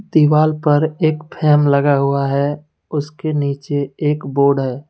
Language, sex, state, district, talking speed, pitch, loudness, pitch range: Hindi, male, Jharkhand, Deoghar, 145 wpm, 145 Hz, -17 LUFS, 140-155 Hz